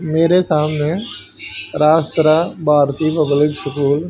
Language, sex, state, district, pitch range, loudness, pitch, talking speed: Hindi, male, Haryana, Jhajjar, 150-160 Hz, -16 LUFS, 155 Hz, 115 wpm